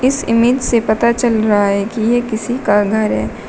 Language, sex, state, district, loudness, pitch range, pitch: Hindi, female, Uttar Pradesh, Shamli, -15 LUFS, 205-240 Hz, 225 Hz